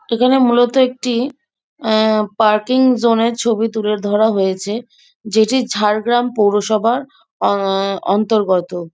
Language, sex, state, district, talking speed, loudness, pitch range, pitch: Bengali, female, West Bengal, Jhargram, 85 wpm, -16 LUFS, 210-245 Hz, 220 Hz